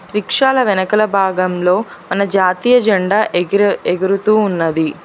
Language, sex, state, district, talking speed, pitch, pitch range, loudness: Telugu, female, Telangana, Hyderabad, 95 wpm, 195 Hz, 185-210 Hz, -14 LUFS